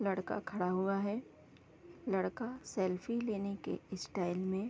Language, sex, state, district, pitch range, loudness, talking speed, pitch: Hindi, female, Bihar, East Champaran, 190-225 Hz, -38 LUFS, 140 wpm, 195 Hz